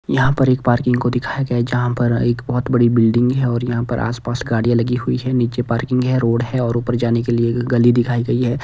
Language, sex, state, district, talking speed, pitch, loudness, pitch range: Hindi, male, Himachal Pradesh, Shimla, 265 wpm, 120 Hz, -17 LUFS, 120-125 Hz